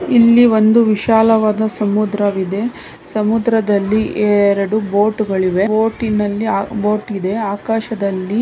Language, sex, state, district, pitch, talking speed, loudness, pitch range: Kannada, female, Karnataka, Dakshina Kannada, 215 Hz, 95 wpm, -15 LUFS, 205-220 Hz